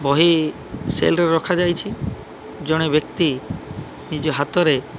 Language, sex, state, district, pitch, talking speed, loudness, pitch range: Odia, male, Odisha, Malkangiri, 155 Hz, 110 wpm, -20 LUFS, 145-170 Hz